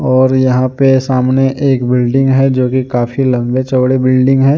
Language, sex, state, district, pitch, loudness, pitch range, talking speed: Hindi, male, Jharkhand, Deoghar, 130 Hz, -12 LUFS, 130-135 Hz, 195 wpm